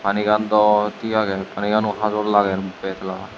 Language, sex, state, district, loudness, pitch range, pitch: Chakma, male, Tripura, West Tripura, -20 LUFS, 95-105 Hz, 105 Hz